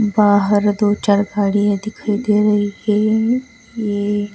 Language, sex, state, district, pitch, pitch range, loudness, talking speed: Hindi, female, Bihar, West Champaran, 210 Hz, 205-215 Hz, -17 LUFS, 125 wpm